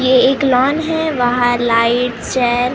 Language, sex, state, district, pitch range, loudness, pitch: Hindi, male, Maharashtra, Gondia, 245-265 Hz, -14 LUFS, 250 Hz